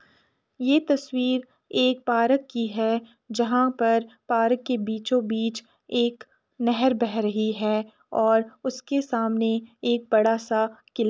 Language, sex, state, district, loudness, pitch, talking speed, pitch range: Hindi, female, Uttar Pradesh, Etah, -25 LUFS, 235 Hz, 135 wpm, 225-250 Hz